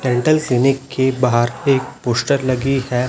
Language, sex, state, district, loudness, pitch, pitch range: Hindi, male, Chhattisgarh, Raipur, -17 LUFS, 130 Hz, 125-135 Hz